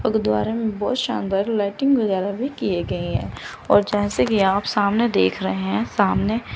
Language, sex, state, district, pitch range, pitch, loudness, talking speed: Hindi, female, Chandigarh, Chandigarh, 195-225 Hz, 205 Hz, -21 LUFS, 185 wpm